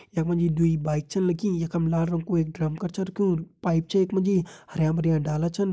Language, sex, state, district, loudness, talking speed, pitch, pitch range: Hindi, male, Uttarakhand, Tehri Garhwal, -25 LUFS, 230 wpm, 170 Hz, 165-185 Hz